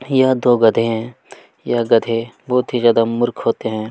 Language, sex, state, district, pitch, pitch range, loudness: Hindi, male, Chhattisgarh, Kabirdham, 120 Hz, 115-125 Hz, -17 LUFS